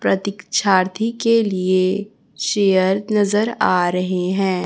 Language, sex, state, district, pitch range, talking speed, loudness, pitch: Hindi, female, Chhattisgarh, Raipur, 185-210 Hz, 105 wpm, -18 LUFS, 190 Hz